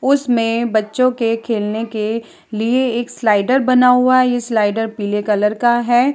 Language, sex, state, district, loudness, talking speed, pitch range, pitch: Hindi, female, Uttar Pradesh, Jalaun, -16 LUFS, 165 wpm, 220-250 Hz, 235 Hz